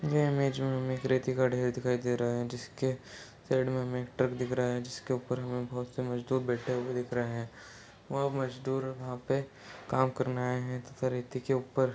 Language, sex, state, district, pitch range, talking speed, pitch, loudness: Hindi, male, Chhattisgarh, Balrampur, 125-130 Hz, 205 wpm, 125 Hz, -33 LUFS